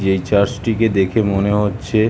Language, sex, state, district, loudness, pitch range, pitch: Bengali, male, West Bengal, Kolkata, -17 LUFS, 100-110 Hz, 100 Hz